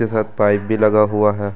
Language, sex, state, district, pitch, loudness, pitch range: Hindi, male, Delhi, New Delhi, 105 Hz, -16 LUFS, 105-110 Hz